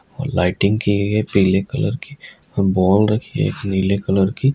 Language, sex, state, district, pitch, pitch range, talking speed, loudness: Hindi, male, Rajasthan, Nagaur, 100 Hz, 95-135 Hz, 195 wpm, -18 LUFS